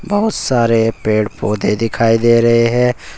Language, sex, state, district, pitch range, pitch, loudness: Hindi, male, Uttar Pradesh, Saharanpur, 110-125 Hz, 115 Hz, -14 LUFS